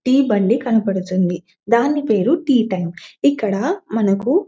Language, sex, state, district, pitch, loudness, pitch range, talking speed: Telugu, female, Telangana, Nalgonda, 225 Hz, -18 LUFS, 195-275 Hz, 135 wpm